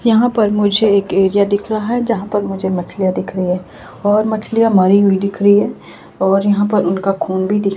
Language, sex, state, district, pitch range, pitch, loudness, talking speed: Hindi, female, Himachal Pradesh, Shimla, 195-210 Hz, 200 Hz, -15 LUFS, 240 wpm